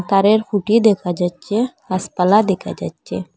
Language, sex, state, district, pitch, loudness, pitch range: Bengali, female, Assam, Hailakandi, 200 Hz, -18 LUFS, 185-215 Hz